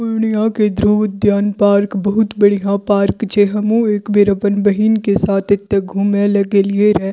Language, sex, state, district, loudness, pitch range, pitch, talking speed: Maithili, female, Bihar, Purnia, -14 LUFS, 200-210 Hz, 205 Hz, 185 wpm